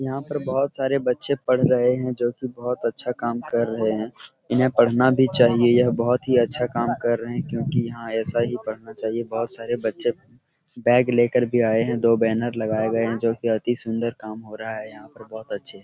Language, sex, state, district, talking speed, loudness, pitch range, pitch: Hindi, male, Bihar, Araria, 225 wpm, -22 LUFS, 115-125 Hz, 120 Hz